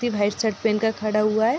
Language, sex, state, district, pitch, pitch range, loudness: Hindi, female, Bihar, Darbhanga, 220 Hz, 215-225 Hz, -22 LUFS